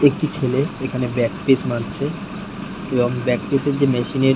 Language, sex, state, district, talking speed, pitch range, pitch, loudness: Bengali, male, West Bengal, North 24 Parganas, 165 wpm, 125-140 Hz, 130 Hz, -21 LUFS